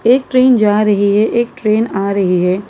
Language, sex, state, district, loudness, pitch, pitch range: Hindi, female, Maharashtra, Mumbai Suburban, -13 LUFS, 215 Hz, 200-235 Hz